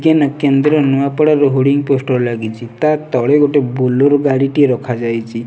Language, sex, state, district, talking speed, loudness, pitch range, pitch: Odia, male, Odisha, Nuapada, 130 wpm, -14 LUFS, 125-145 Hz, 140 Hz